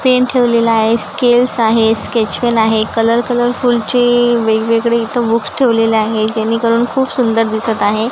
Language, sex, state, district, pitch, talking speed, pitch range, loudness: Marathi, female, Maharashtra, Gondia, 230 Hz, 150 wpm, 225-245 Hz, -13 LUFS